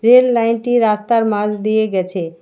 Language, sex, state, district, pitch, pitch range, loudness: Bengali, female, West Bengal, Alipurduar, 220 Hz, 210-230 Hz, -15 LUFS